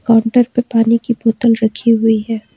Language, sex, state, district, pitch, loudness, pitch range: Hindi, female, Jharkhand, Ranchi, 230 Hz, -14 LUFS, 225-235 Hz